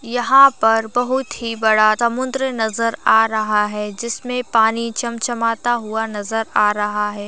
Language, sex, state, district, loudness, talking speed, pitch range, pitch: Hindi, female, Uttar Pradesh, Gorakhpur, -17 LUFS, 150 wpm, 215-240 Hz, 230 Hz